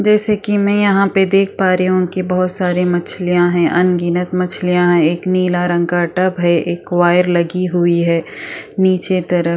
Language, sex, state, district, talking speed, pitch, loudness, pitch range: Hindi, female, Chhattisgarh, Sukma, 190 wpm, 180 Hz, -15 LUFS, 175-185 Hz